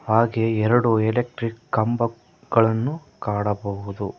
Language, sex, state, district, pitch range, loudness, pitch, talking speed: Kannada, male, Karnataka, Koppal, 105-120 Hz, -22 LUFS, 115 Hz, 70 wpm